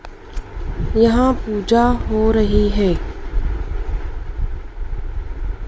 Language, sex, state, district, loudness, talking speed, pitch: Hindi, female, Madhya Pradesh, Dhar, -19 LUFS, 55 wpm, 170 Hz